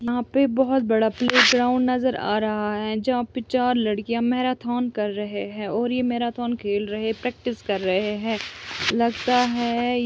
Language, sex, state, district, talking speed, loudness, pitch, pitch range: Hindi, female, Andhra Pradesh, Chittoor, 175 wpm, -23 LUFS, 240 Hz, 215-250 Hz